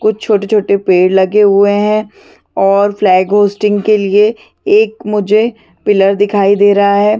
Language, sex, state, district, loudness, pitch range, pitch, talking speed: Hindi, female, Chhattisgarh, Bastar, -11 LUFS, 200-215 Hz, 205 Hz, 165 wpm